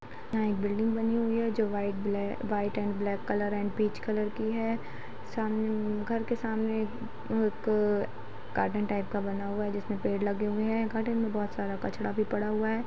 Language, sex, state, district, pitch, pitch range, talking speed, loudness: Hindi, female, Bihar, Gopalganj, 215 Hz, 205-225 Hz, 205 wpm, -31 LUFS